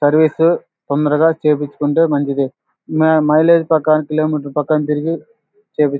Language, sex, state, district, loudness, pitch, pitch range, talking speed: Telugu, male, Andhra Pradesh, Anantapur, -15 LUFS, 155 Hz, 150-160 Hz, 100 wpm